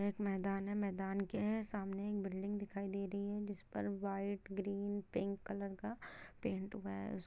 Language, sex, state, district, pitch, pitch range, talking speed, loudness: Hindi, female, Bihar, Gopalganj, 200 Hz, 195-205 Hz, 180 wpm, -42 LUFS